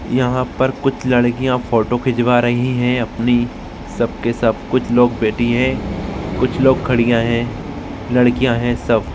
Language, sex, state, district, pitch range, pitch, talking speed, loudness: Hindi, male, Maharashtra, Solapur, 115-125 Hz, 120 Hz, 150 wpm, -17 LUFS